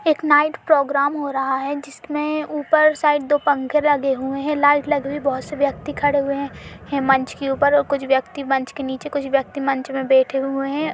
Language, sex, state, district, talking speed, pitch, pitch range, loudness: Hindi, female, Uttar Pradesh, Jalaun, 220 wpm, 280 Hz, 270-295 Hz, -20 LUFS